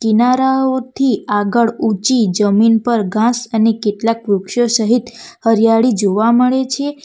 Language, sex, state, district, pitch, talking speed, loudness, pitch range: Gujarati, female, Gujarat, Valsad, 230 Hz, 130 wpm, -14 LUFS, 220-250 Hz